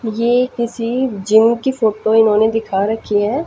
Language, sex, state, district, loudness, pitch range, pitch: Hindi, female, Haryana, Jhajjar, -15 LUFS, 215-235 Hz, 225 Hz